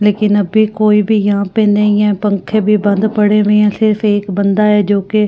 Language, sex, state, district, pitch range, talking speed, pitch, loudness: Hindi, female, Delhi, New Delhi, 205-210 Hz, 240 wpm, 210 Hz, -12 LUFS